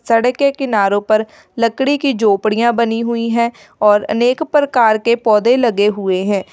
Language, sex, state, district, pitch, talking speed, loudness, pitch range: Hindi, female, Uttar Pradesh, Lalitpur, 230 Hz, 165 wpm, -15 LUFS, 210-250 Hz